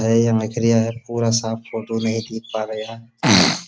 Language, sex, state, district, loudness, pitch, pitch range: Hindi, male, Uttar Pradesh, Budaun, -20 LUFS, 115 Hz, 110-115 Hz